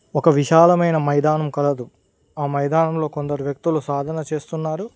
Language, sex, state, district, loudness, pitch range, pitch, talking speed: Telugu, male, Telangana, Mahabubabad, -19 LUFS, 145-160 Hz, 155 Hz, 120 wpm